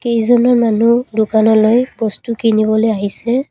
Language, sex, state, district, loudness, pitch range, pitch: Assamese, female, Assam, Kamrup Metropolitan, -13 LUFS, 220-240 Hz, 225 Hz